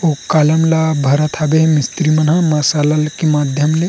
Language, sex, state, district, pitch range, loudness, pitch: Chhattisgarhi, male, Chhattisgarh, Rajnandgaon, 150-160 Hz, -14 LUFS, 155 Hz